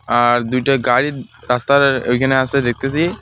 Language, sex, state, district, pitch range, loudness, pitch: Bengali, male, West Bengal, Alipurduar, 120-140 Hz, -16 LUFS, 130 Hz